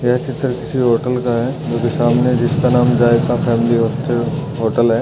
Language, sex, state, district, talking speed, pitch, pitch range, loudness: Hindi, male, Chhattisgarh, Jashpur, 190 wpm, 120 Hz, 120-125 Hz, -16 LUFS